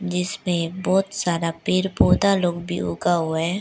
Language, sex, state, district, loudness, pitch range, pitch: Hindi, female, Arunachal Pradesh, Lower Dibang Valley, -22 LUFS, 170-190 Hz, 180 Hz